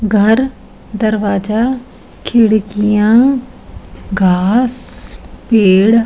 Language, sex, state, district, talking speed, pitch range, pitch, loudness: Hindi, female, Bihar, Sitamarhi, 60 wpm, 205-240 Hz, 220 Hz, -13 LUFS